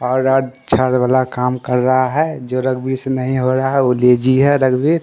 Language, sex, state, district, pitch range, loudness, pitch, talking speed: Hindi, male, Bihar, Katihar, 125-135 Hz, -15 LUFS, 130 Hz, 225 wpm